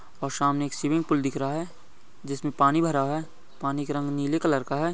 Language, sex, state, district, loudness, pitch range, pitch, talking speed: Hindi, male, Goa, North and South Goa, -27 LUFS, 140-160 Hz, 145 Hz, 230 wpm